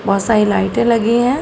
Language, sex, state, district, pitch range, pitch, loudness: Hindi, female, Uttar Pradesh, Gorakhpur, 205-235 Hz, 225 Hz, -14 LUFS